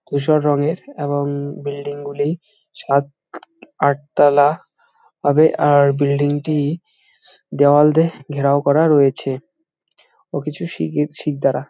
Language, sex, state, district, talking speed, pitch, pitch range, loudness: Bengali, male, West Bengal, Jalpaiguri, 120 wpm, 145 Hz, 140-155 Hz, -17 LUFS